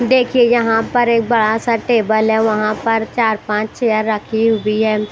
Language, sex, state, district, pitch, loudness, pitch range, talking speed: Hindi, female, Bihar, West Champaran, 225 Hz, -15 LUFS, 215-235 Hz, 190 wpm